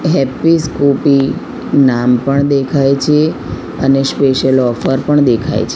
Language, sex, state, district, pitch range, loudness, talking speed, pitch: Gujarati, female, Gujarat, Gandhinagar, 135-145 Hz, -12 LUFS, 125 wpm, 140 Hz